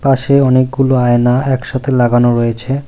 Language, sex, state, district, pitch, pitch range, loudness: Bengali, male, West Bengal, Cooch Behar, 130 Hz, 120-135 Hz, -12 LUFS